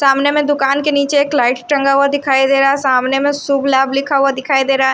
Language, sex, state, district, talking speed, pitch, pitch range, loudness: Hindi, female, Odisha, Sambalpur, 265 wpm, 275 Hz, 270-285 Hz, -14 LUFS